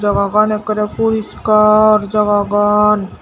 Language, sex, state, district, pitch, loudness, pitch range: Chakma, female, Tripura, Dhalai, 210 Hz, -13 LUFS, 205-215 Hz